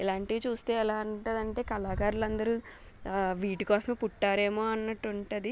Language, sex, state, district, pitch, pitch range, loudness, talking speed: Telugu, female, Telangana, Nalgonda, 215 Hz, 205-225 Hz, -31 LUFS, 110 wpm